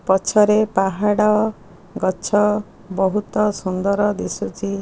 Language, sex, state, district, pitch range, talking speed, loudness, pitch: Odia, female, Odisha, Khordha, 190-210 Hz, 75 wpm, -19 LUFS, 205 Hz